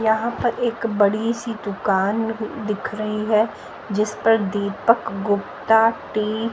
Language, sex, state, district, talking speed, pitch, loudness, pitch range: Hindi, female, Haryana, Jhajjar, 140 wpm, 215 Hz, -21 LUFS, 210-225 Hz